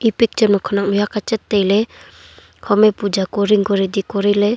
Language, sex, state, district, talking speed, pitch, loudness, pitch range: Wancho, female, Arunachal Pradesh, Longding, 210 wpm, 205 Hz, -17 LUFS, 200-215 Hz